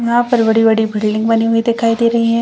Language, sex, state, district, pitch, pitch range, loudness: Hindi, female, Chhattisgarh, Bilaspur, 230 Hz, 225-235 Hz, -14 LUFS